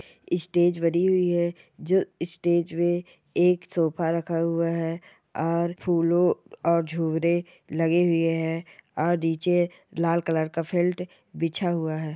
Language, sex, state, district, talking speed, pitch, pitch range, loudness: Hindi, male, Maharashtra, Solapur, 145 wpm, 170 Hz, 165-175 Hz, -25 LUFS